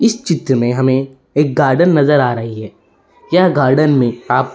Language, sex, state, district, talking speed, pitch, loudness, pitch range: Hindi, male, Uttar Pradesh, Etah, 200 wpm, 135 Hz, -14 LUFS, 125-150 Hz